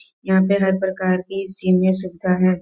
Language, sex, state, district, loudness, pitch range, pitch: Hindi, female, Bihar, East Champaran, -19 LUFS, 185-190 Hz, 190 Hz